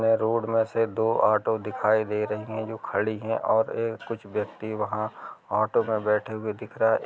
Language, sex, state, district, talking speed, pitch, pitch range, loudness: Hindi, male, Chhattisgarh, Rajnandgaon, 195 wpm, 110 Hz, 105-115 Hz, -26 LUFS